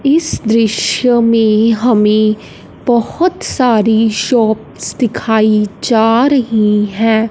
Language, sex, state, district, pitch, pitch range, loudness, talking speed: Hindi, female, Punjab, Fazilka, 225 Hz, 215-240 Hz, -12 LUFS, 90 wpm